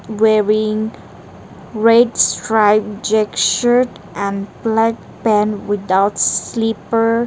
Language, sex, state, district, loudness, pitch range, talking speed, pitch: English, female, Nagaland, Dimapur, -16 LUFS, 205-225 Hz, 80 wpm, 215 Hz